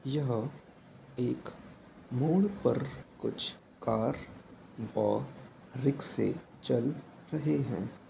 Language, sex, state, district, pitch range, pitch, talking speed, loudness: Hindi, male, Uttar Pradesh, Etah, 95-150 Hz, 135 Hz, 90 wpm, -33 LUFS